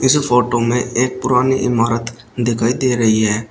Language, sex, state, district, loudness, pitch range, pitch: Hindi, male, Uttar Pradesh, Shamli, -16 LUFS, 115-125 Hz, 120 Hz